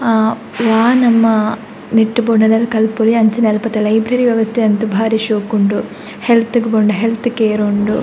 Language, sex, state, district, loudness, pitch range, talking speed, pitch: Tulu, female, Karnataka, Dakshina Kannada, -14 LUFS, 215-230 Hz, 150 wpm, 225 Hz